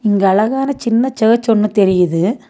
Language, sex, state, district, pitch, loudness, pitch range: Tamil, female, Tamil Nadu, Nilgiris, 220 Hz, -14 LUFS, 195-235 Hz